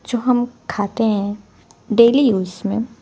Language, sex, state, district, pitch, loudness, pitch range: Hindi, female, Punjab, Fazilka, 225 Hz, -18 LUFS, 205-240 Hz